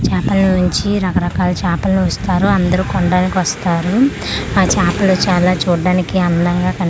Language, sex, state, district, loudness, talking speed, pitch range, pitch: Telugu, female, Andhra Pradesh, Manyam, -15 LUFS, 120 wpm, 170-190 Hz, 180 Hz